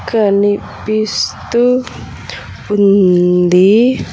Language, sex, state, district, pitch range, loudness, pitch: Telugu, female, Andhra Pradesh, Sri Satya Sai, 190-225 Hz, -12 LUFS, 205 Hz